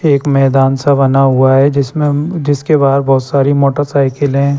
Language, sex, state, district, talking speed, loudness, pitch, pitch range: Hindi, male, Chandigarh, Chandigarh, 170 wpm, -11 LUFS, 140 Hz, 135-145 Hz